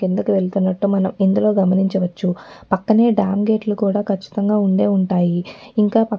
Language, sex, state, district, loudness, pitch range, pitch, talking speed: Telugu, female, Telangana, Nalgonda, -18 LUFS, 190-210 Hz, 195 Hz, 145 wpm